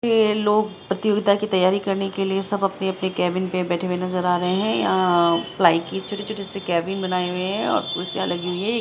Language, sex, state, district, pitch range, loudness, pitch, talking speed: Hindi, female, Bihar, Araria, 180-205 Hz, -22 LUFS, 190 Hz, 220 wpm